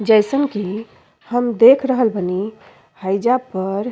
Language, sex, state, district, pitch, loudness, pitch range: Bhojpuri, female, Uttar Pradesh, Ghazipur, 220 Hz, -17 LUFS, 195-245 Hz